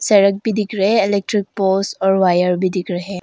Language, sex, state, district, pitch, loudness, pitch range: Hindi, female, Arunachal Pradesh, Longding, 195 Hz, -17 LUFS, 185-205 Hz